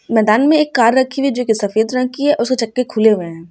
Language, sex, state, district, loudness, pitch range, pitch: Hindi, female, Uttar Pradesh, Ghazipur, -15 LUFS, 220-260 Hz, 240 Hz